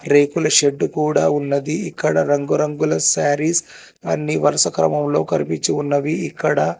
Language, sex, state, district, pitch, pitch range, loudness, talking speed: Telugu, male, Telangana, Hyderabad, 150 Hz, 145-155 Hz, -18 LUFS, 115 wpm